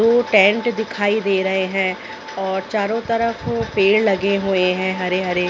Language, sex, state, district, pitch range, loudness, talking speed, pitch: Hindi, female, Chhattisgarh, Raigarh, 185-220 Hz, -18 LUFS, 155 wpm, 195 Hz